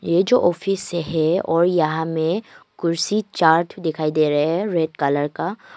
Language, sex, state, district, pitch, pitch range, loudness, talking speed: Hindi, female, Arunachal Pradesh, Longding, 165 Hz, 160-180 Hz, -20 LUFS, 175 wpm